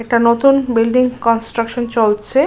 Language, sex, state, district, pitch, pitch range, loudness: Bengali, female, West Bengal, Jalpaiguri, 235 Hz, 230-250 Hz, -15 LUFS